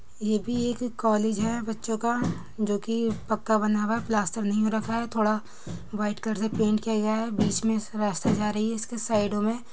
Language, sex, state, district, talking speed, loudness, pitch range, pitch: Hindi, female, Uttar Pradesh, Jyotiba Phule Nagar, 230 wpm, -27 LUFS, 210-225 Hz, 220 Hz